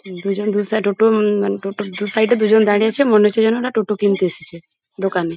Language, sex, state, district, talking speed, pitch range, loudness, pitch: Bengali, female, West Bengal, Paschim Medinipur, 225 wpm, 195-220 Hz, -17 LUFS, 205 Hz